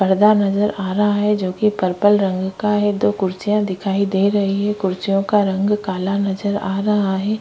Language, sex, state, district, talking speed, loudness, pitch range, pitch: Hindi, female, Chhattisgarh, Korba, 200 wpm, -18 LUFS, 190-210 Hz, 200 Hz